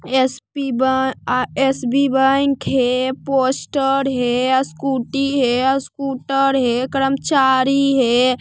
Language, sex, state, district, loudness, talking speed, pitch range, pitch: Hindi, female, Bihar, Lakhisarai, -17 LUFS, 105 wpm, 255-275 Hz, 265 Hz